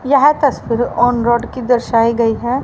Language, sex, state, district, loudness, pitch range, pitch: Hindi, female, Haryana, Rohtak, -14 LUFS, 235-260 Hz, 245 Hz